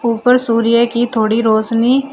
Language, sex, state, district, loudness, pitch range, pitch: Hindi, female, Uttar Pradesh, Shamli, -13 LUFS, 230-240 Hz, 230 Hz